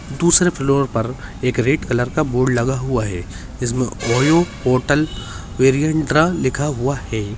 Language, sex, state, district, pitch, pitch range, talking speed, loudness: Hindi, male, Uttarakhand, Uttarkashi, 130 Hz, 120-145 Hz, 145 wpm, -18 LUFS